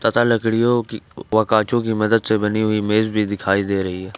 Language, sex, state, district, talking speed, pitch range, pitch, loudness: Hindi, male, Jharkhand, Ranchi, 230 wpm, 105-115 Hz, 110 Hz, -19 LUFS